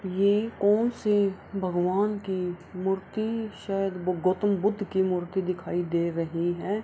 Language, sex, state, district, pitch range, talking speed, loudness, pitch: Hindi, female, Bihar, Kishanganj, 180-205 Hz, 130 wpm, -27 LUFS, 190 Hz